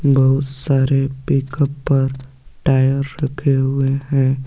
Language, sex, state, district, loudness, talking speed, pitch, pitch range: Hindi, male, Jharkhand, Garhwa, -18 LUFS, 110 wpm, 135 Hz, 135-140 Hz